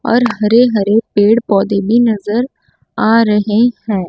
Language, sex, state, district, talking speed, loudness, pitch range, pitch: Hindi, female, Chandigarh, Chandigarh, 145 wpm, -13 LUFS, 205-235 Hz, 220 Hz